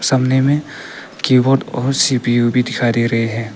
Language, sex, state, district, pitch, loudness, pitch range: Hindi, male, Arunachal Pradesh, Papum Pare, 125 Hz, -15 LUFS, 120-135 Hz